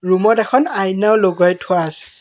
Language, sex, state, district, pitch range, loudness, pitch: Assamese, male, Assam, Kamrup Metropolitan, 180-215 Hz, -15 LUFS, 190 Hz